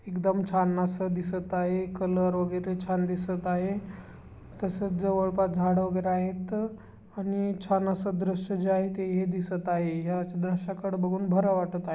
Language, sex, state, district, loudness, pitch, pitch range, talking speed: Marathi, female, Maharashtra, Chandrapur, -29 LUFS, 185 Hz, 180-195 Hz, 160 wpm